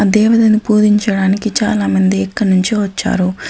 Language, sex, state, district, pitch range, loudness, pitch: Telugu, female, Telangana, Adilabad, 195-215 Hz, -13 LUFS, 205 Hz